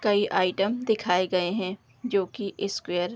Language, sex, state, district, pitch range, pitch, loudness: Hindi, female, Bihar, Darbhanga, 185-210 Hz, 195 Hz, -27 LUFS